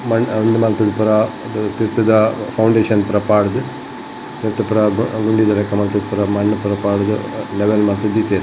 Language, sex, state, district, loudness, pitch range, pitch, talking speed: Tulu, male, Karnataka, Dakshina Kannada, -16 LUFS, 105-110 Hz, 105 Hz, 135 wpm